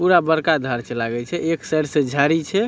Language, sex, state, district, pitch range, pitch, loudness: Maithili, male, Bihar, Supaul, 135-165 Hz, 155 Hz, -20 LUFS